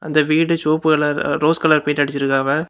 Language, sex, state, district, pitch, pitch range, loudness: Tamil, male, Tamil Nadu, Kanyakumari, 155 Hz, 145-155 Hz, -17 LUFS